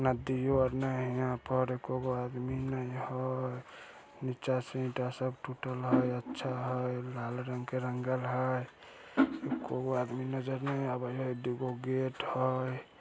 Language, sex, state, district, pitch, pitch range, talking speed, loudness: Maithili, male, Bihar, Samastipur, 130 Hz, 125-130 Hz, 150 wpm, -35 LUFS